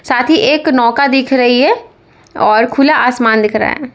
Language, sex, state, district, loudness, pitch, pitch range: Hindi, female, Uttar Pradesh, Lalitpur, -11 LUFS, 260 Hz, 240-290 Hz